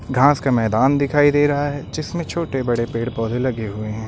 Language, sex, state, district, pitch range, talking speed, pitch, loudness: Hindi, male, Uttar Pradesh, Lucknow, 115-145 Hz, 220 wpm, 130 Hz, -19 LUFS